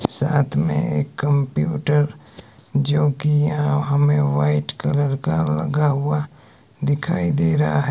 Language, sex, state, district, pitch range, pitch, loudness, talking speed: Hindi, male, Himachal Pradesh, Shimla, 130-150 Hz, 145 Hz, -20 LUFS, 130 wpm